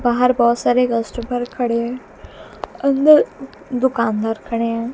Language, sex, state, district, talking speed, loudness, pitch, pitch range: Hindi, female, Haryana, Jhajjar, 110 wpm, -18 LUFS, 245 Hz, 230-255 Hz